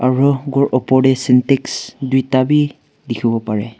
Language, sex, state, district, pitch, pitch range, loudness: Nagamese, male, Nagaland, Kohima, 130 Hz, 125-135 Hz, -16 LUFS